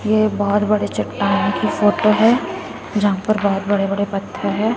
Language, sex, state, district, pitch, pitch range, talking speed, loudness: Hindi, female, Chhattisgarh, Raipur, 205 Hz, 200-215 Hz, 165 wpm, -18 LUFS